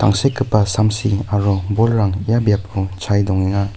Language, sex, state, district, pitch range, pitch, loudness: Garo, male, Meghalaya, North Garo Hills, 100-110 Hz, 100 Hz, -17 LUFS